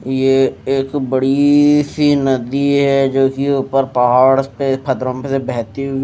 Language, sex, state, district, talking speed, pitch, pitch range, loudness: Hindi, male, Odisha, Malkangiri, 130 wpm, 135 Hz, 130-140 Hz, -15 LUFS